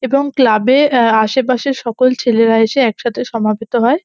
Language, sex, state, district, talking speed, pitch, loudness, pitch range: Bengali, female, West Bengal, North 24 Parganas, 165 wpm, 245 Hz, -13 LUFS, 225-260 Hz